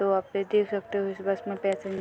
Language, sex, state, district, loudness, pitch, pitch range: Hindi, female, Uttar Pradesh, Deoria, -28 LUFS, 195 Hz, 195-200 Hz